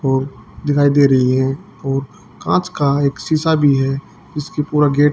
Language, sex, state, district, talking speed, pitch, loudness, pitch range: Hindi, female, Haryana, Charkhi Dadri, 185 wpm, 140 Hz, -17 LUFS, 135-150 Hz